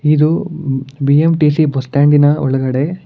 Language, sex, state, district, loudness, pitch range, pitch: Kannada, male, Karnataka, Bangalore, -13 LUFS, 135-155 Hz, 145 Hz